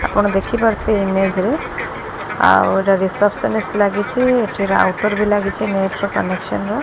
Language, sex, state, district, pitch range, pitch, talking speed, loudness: Odia, female, Odisha, Khordha, 195-215 Hz, 205 Hz, 140 wpm, -17 LUFS